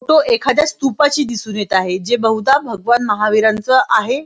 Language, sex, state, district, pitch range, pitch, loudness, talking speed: Marathi, female, Maharashtra, Nagpur, 215-285 Hz, 240 Hz, -15 LUFS, 155 wpm